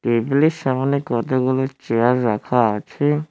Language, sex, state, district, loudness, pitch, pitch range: Bengali, male, West Bengal, Cooch Behar, -19 LUFS, 130 Hz, 120-140 Hz